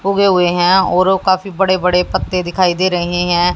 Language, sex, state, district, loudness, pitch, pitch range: Hindi, female, Haryana, Jhajjar, -14 LUFS, 185 Hz, 175-190 Hz